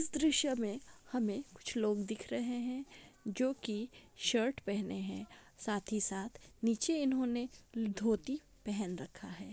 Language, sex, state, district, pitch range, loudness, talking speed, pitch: Hindi, female, Jharkhand, Jamtara, 210-260 Hz, -37 LUFS, 145 wpm, 230 Hz